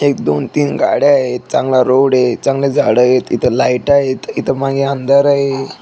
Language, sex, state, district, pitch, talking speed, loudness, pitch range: Marathi, male, Maharashtra, Dhule, 135 Hz, 135 wpm, -13 LUFS, 130-140 Hz